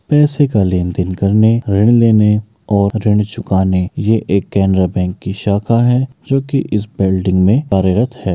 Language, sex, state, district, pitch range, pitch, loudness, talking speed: Maithili, male, Bihar, Bhagalpur, 95-115 Hz, 105 Hz, -14 LUFS, 160 wpm